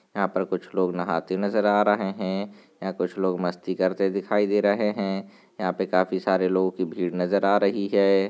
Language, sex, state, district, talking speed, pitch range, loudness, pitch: Hindi, male, Uttar Pradesh, Varanasi, 210 wpm, 90-100 Hz, -24 LUFS, 95 Hz